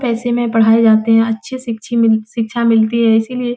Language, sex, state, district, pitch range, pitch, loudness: Hindi, female, Uttar Pradesh, Etah, 225-240 Hz, 230 Hz, -14 LUFS